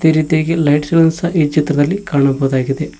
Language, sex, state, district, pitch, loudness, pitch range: Kannada, male, Karnataka, Koppal, 155 Hz, -14 LUFS, 145-160 Hz